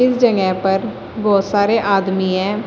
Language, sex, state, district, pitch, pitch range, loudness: Hindi, female, Uttar Pradesh, Shamli, 200 Hz, 190-215 Hz, -16 LUFS